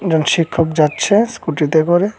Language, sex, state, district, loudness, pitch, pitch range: Bengali, male, West Bengal, Cooch Behar, -15 LUFS, 165 Hz, 155-195 Hz